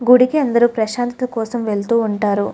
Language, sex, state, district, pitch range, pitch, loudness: Telugu, female, Andhra Pradesh, Krishna, 220-245 Hz, 235 Hz, -17 LUFS